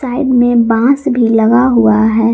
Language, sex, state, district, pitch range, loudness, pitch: Hindi, female, Jharkhand, Garhwa, 225-255 Hz, -10 LUFS, 235 Hz